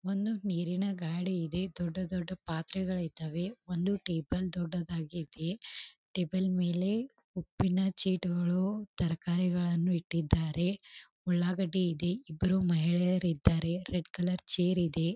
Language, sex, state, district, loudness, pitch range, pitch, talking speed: Kannada, female, Karnataka, Belgaum, -33 LUFS, 170-185 Hz, 180 Hz, 105 wpm